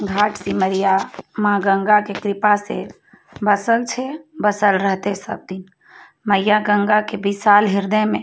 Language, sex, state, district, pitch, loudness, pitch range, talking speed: Maithili, female, Bihar, Begusarai, 205 Hz, -18 LUFS, 200-210 Hz, 140 wpm